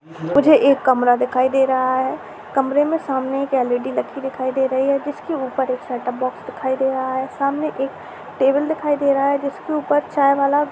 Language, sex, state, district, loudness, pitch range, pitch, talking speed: Hindi, female, Chhattisgarh, Kabirdham, -19 LUFS, 260-285 Hz, 270 Hz, 195 wpm